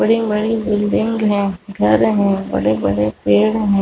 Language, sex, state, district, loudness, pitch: Hindi, female, Chhattisgarh, Raigarh, -16 LUFS, 200 Hz